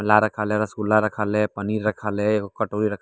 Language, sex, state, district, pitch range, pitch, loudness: Hindi, male, Bihar, Jamui, 105-110 Hz, 105 Hz, -23 LUFS